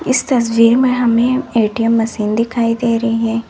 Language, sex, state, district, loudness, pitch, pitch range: Hindi, female, Uttar Pradesh, Lalitpur, -14 LUFS, 230 Hz, 230-245 Hz